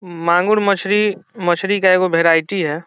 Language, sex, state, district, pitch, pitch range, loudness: Hindi, male, Bihar, Saran, 185 Hz, 170-200 Hz, -16 LUFS